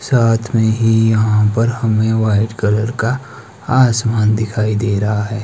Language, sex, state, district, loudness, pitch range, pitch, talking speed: Hindi, male, Himachal Pradesh, Shimla, -15 LUFS, 110-115 Hz, 110 Hz, 155 wpm